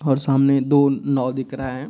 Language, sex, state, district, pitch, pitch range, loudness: Hindi, male, Bihar, Kishanganj, 135 Hz, 130-140 Hz, -19 LUFS